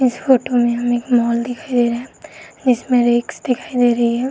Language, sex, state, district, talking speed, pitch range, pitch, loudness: Hindi, female, Uttar Pradesh, Varanasi, 210 wpm, 240-255 Hz, 245 Hz, -17 LUFS